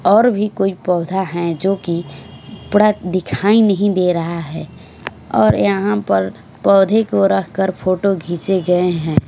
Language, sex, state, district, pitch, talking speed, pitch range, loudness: Hindi, female, Punjab, Fazilka, 180 Hz, 155 wpm, 150-195 Hz, -16 LUFS